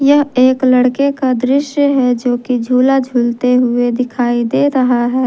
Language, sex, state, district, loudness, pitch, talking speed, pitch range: Hindi, female, Jharkhand, Ranchi, -13 LUFS, 255 Hz, 170 wpm, 245-270 Hz